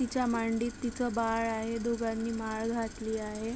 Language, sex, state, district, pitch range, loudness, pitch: Marathi, female, Maharashtra, Chandrapur, 225-235 Hz, -32 LUFS, 230 Hz